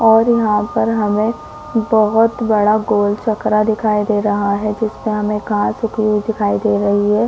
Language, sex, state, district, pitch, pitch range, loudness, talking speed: Hindi, female, Chhattisgarh, Korba, 215 Hz, 210-225 Hz, -16 LUFS, 175 wpm